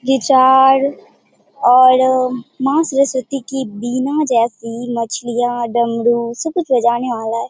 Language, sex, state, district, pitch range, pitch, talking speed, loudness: Hindi, female, Bihar, Purnia, 235-265 Hz, 250 Hz, 120 wpm, -15 LUFS